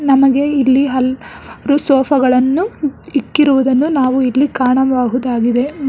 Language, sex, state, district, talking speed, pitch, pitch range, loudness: Kannada, female, Karnataka, Bangalore, 110 wpm, 270 Hz, 255-285 Hz, -14 LUFS